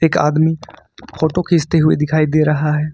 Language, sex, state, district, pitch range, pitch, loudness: Hindi, male, Jharkhand, Ranchi, 150-160 Hz, 155 Hz, -15 LUFS